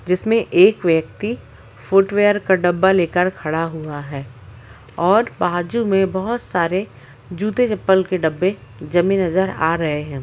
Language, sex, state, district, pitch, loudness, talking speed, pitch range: Hindi, male, Jharkhand, Jamtara, 180 Hz, -18 LUFS, 140 wpm, 155-195 Hz